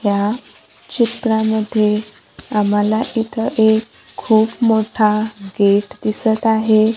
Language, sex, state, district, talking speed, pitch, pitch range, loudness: Marathi, female, Maharashtra, Gondia, 85 wpm, 220 Hz, 210-225 Hz, -17 LUFS